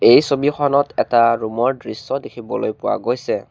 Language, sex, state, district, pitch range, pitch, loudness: Assamese, male, Assam, Kamrup Metropolitan, 115-145 Hz, 135 Hz, -18 LUFS